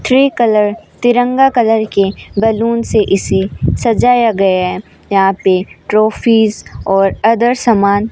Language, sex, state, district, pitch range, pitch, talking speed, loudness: Hindi, female, Rajasthan, Bikaner, 195-235 Hz, 220 Hz, 125 wpm, -12 LUFS